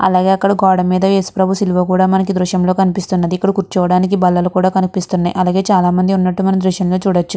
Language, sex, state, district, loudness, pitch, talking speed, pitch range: Telugu, female, Andhra Pradesh, Guntur, -14 LUFS, 185 Hz, 185 wpm, 180-190 Hz